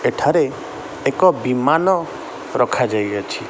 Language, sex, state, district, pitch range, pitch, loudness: Odia, male, Odisha, Khordha, 110-175 Hz, 135 Hz, -18 LUFS